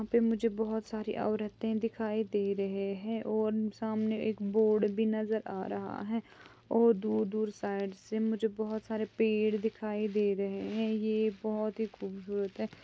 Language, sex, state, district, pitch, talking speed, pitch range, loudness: Hindi, female, Andhra Pradesh, Chittoor, 220 Hz, 175 wpm, 210-220 Hz, -33 LUFS